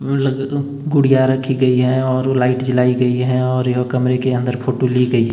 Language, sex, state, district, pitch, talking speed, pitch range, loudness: Hindi, male, Himachal Pradesh, Shimla, 130 Hz, 190 wpm, 125-130 Hz, -16 LUFS